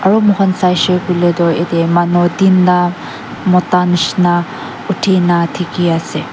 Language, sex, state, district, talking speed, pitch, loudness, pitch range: Nagamese, female, Nagaland, Dimapur, 140 wpm, 180 Hz, -13 LUFS, 175-185 Hz